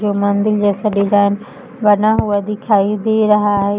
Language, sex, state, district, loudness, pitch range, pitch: Hindi, female, Uttar Pradesh, Budaun, -15 LUFS, 205-215 Hz, 205 Hz